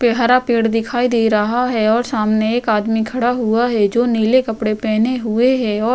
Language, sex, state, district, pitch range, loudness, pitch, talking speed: Hindi, female, Uttar Pradesh, Jyotiba Phule Nagar, 220-245 Hz, -16 LUFS, 230 Hz, 210 wpm